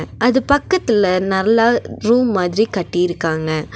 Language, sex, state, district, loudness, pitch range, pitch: Tamil, female, Tamil Nadu, Nilgiris, -16 LUFS, 180-240 Hz, 210 Hz